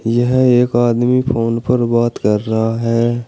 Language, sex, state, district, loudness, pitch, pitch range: Hindi, male, Uttar Pradesh, Saharanpur, -15 LUFS, 120 Hz, 115-125 Hz